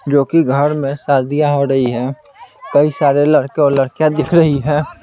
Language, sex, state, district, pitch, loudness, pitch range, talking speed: Hindi, male, Bihar, Patna, 145 Hz, -14 LUFS, 140-150 Hz, 190 wpm